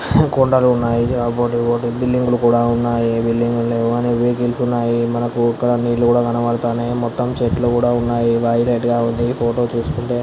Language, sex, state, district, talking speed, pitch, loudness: Telugu, male, Andhra Pradesh, Anantapur, 65 wpm, 120 Hz, -17 LUFS